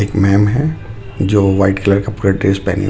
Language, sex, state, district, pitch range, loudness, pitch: Hindi, male, Jharkhand, Ranchi, 100-105 Hz, -14 LUFS, 100 Hz